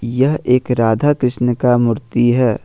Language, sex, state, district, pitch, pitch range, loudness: Hindi, male, Jharkhand, Ranchi, 120 Hz, 120-130 Hz, -15 LUFS